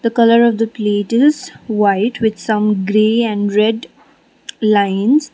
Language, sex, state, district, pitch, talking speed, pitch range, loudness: English, female, Sikkim, Gangtok, 225 Hz, 135 wpm, 210-240 Hz, -15 LUFS